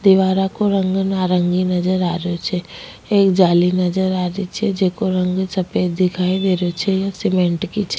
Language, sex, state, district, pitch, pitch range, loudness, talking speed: Rajasthani, female, Rajasthan, Nagaur, 185 Hz, 180-195 Hz, -18 LUFS, 185 wpm